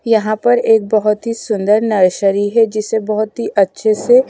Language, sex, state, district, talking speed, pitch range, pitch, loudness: Hindi, female, Maharashtra, Mumbai Suburban, 180 wpm, 210-230 Hz, 215 Hz, -14 LUFS